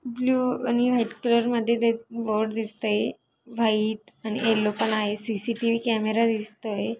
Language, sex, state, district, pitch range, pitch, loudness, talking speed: Marathi, female, Maharashtra, Dhule, 215-235 Hz, 230 Hz, -25 LUFS, 135 wpm